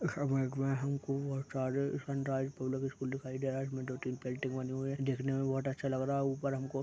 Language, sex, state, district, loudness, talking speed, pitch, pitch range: Hindi, male, Chhattisgarh, Balrampur, -36 LUFS, 230 wpm, 135 Hz, 130-135 Hz